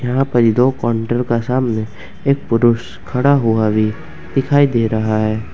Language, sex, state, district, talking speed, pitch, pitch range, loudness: Hindi, male, Jharkhand, Ranchi, 175 wpm, 120 Hz, 110-130 Hz, -16 LUFS